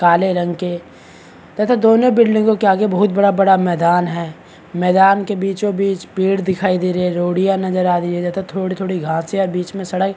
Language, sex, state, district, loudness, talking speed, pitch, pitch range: Hindi, male, Chhattisgarh, Bastar, -16 LUFS, 225 wpm, 190 Hz, 180-195 Hz